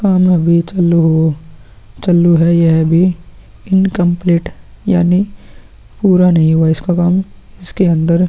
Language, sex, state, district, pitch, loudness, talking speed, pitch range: Hindi, male, Uttarakhand, Tehri Garhwal, 175 Hz, -12 LUFS, 150 wpm, 165-185 Hz